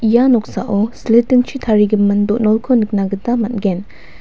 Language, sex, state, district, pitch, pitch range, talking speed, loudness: Garo, female, Meghalaya, West Garo Hills, 220 Hz, 205-240 Hz, 115 wpm, -15 LUFS